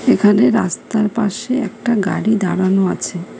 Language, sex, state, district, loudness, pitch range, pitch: Bengali, female, West Bengal, Cooch Behar, -16 LUFS, 185-220 Hz, 210 Hz